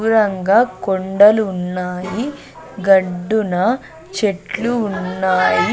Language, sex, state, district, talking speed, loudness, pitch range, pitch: Telugu, female, Andhra Pradesh, Sri Satya Sai, 65 wpm, -17 LUFS, 185-220 Hz, 195 Hz